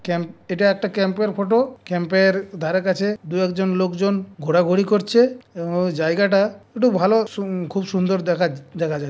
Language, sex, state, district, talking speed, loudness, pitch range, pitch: Bengali, male, West Bengal, Purulia, 170 wpm, -20 LUFS, 175-200 Hz, 190 Hz